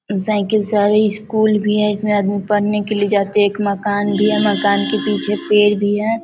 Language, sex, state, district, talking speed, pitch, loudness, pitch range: Hindi, female, Bihar, Vaishali, 220 wpm, 210 Hz, -16 LUFS, 205-210 Hz